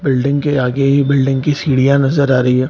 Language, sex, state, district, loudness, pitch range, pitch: Hindi, male, Bihar, Purnia, -14 LUFS, 130-140 Hz, 135 Hz